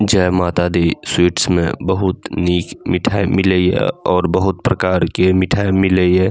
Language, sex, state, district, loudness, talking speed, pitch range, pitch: Maithili, male, Bihar, Saharsa, -16 LUFS, 160 wpm, 90-95 Hz, 90 Hz